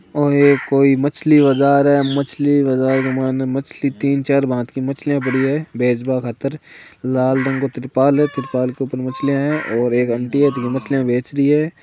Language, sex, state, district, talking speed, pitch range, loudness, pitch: Hindi, male, Rajasthan, Nagaur, 205 wpm, 130-140 Hz, -17 LUFS, 135 Hz